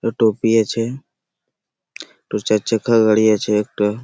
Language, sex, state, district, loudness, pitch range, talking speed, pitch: Bengali, male, West Bengal, Malda, -17 LUFS, 105-115 Hz, 105 wpm, 110 Hz